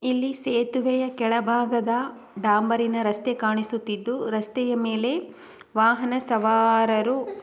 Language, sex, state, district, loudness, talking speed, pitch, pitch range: Kannada, female, Karnataka, Chamarajanagar, -24 LUFS, 90 wpm, 235 Hz, 225-250 Hz